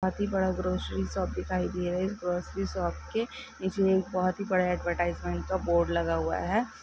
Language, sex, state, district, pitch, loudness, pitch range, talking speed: Hindi, female, Karnataka, Belgaum, 185 Hz, -30 LUFS, 170-190 Hz, 195 wpm